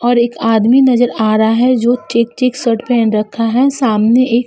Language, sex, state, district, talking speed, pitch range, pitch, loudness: Hindi, female, Uttar Pradesh, Jalaun, 230 wpm, 225-250 Hz, 235 Hz, -12 LUFS